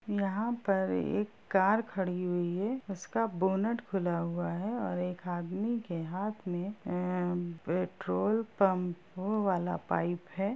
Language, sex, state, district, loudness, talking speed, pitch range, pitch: Hindi, female, Bihar, Gopalganj, -33 LUFS, 135 wpm, 180-210 Hz, 190 Hz